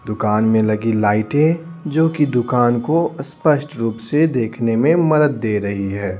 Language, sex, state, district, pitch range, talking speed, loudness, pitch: Hindi, male, Bihar, Patna, 110-155 Hz, 165 wpm, -17 LUFS, 120 Hz